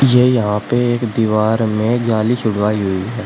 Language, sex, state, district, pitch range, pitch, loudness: Hindi, male, Uttar Pradesh, Shamli, 105-120 Hz, 110 Hz, -16 LUFS